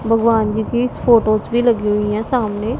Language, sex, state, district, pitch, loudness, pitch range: Hindi, female, Punjab, Pathankot, 225 Hz, -16 LUFS, 215-235 Hz